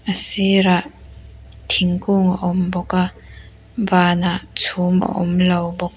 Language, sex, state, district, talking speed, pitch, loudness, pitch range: Mizo, female, Mizoram, Aizawl, 140 wpm, 180 Hz, -17 LUFS, 180-190 Hz